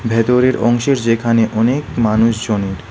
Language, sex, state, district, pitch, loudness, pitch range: Bengali, male, West Bengal, Alipurduar, 115 Hz, -15 LUFS, 110-120 Hz